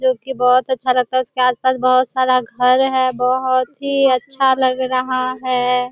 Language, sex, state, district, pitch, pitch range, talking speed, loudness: Hindi, female, Bihar, Kishanganj, 255 Hz, 255-260 Hz, 180 wpm, -16 LUFS